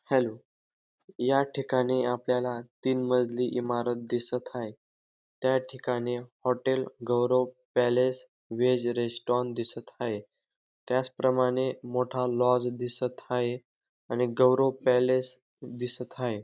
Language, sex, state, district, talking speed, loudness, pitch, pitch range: Marathi, male, Maharashtra, Dhule, 100 wpm, -29 LUFS, 125 Hz, 120-130 Hz